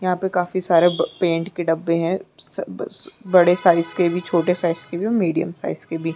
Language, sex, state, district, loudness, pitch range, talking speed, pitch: Hindi, female, Chhattisgarh, Bilaspur, -20 LUFS, 165-185 Hz, 245 wpm, 175 Hz